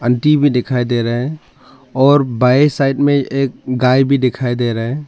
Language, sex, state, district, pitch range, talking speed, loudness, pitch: Hindi, male, Arunachal Pradesh, Lower Dibang Valley, 125-140 Hz, 190 wpm, -14 LUFS, 130 Hz